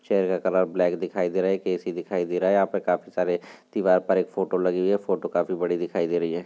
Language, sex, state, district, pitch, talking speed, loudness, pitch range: Hindi, male, Rajasthan, Churu, 90 Hz, 290 wpm, -25 LUFS, 85-95 Hz